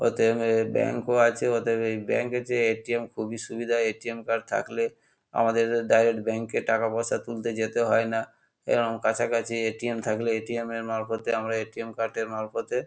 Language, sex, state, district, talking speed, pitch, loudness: Bengali, male, West Bengal, Kolkata, 175 wpm, 115 Hz, -27 LUFS